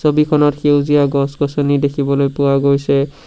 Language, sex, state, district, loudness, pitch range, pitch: Assamese, male, Assam, Sonitpur, -15 LUFS, 140-145 Hz, 140 Hz